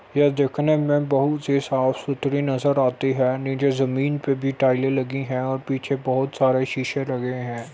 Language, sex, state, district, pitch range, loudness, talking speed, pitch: Hindi, male, Uttar Pradesh, Muzaffarnagar, 130-140 Hz, -22 LUFS, 170 wpm, 135 Hz